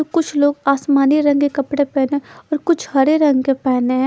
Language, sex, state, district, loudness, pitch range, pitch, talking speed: Hindi, female, Chandigarh, Chandigarh, -16 LUFS, 270-295 Hz, 285 Hz, 220 wpm